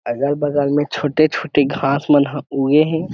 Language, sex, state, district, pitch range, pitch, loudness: Chhattisgarhi, male, Chhattisgarh, Sarguja, 140-150 Hz, 145 Hz, -17 LUFS